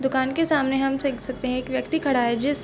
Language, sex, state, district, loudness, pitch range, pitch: Hindi, female, Chhattisgarh, Bilaspur, -24 LUFS, 260-280 Hz, 270 Hz